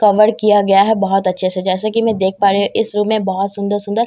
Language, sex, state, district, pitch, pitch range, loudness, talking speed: Hindi, female, Bihar, Katihar, 200 Hz, 195-215 Hz, -15 LUFS, 355 wpm